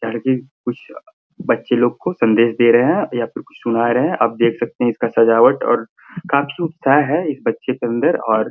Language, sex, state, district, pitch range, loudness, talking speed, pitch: Hindi, male, Bihar, Gaya, 115-135 Hz, -17 LUFS, 225 wpm, 120 Hz